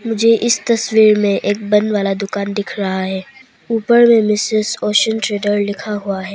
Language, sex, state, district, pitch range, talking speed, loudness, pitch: Hindi, female, Arunachal Pradesh, Papum Pare, 205-225 Hz, 160 wpm, -15 LUFS, 210 Hz